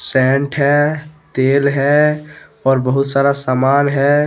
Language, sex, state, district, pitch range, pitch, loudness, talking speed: Hindi, male, Jharkhand, Deoghar, 135-150 Hz, 140 Hz, -14 LUFS, 125 wpm